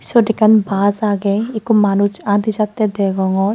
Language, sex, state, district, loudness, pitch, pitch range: Chakma, female, Tripura, Unakoti, -15 LUFS, 205 Hz, 200-220 Hz